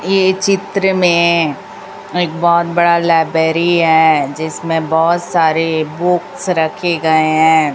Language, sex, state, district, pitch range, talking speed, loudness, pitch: Hindi, female, Chhattisgarh, Raipur, 160-175 Hz, 115 wpm, -13 LUFS, 165 Hz